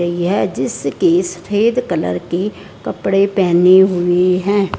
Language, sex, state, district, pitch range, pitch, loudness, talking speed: Hindi, female, Punjab, Fazilka, 175-200 Hz, 185 Hz, -15 LUFS, 115 wpm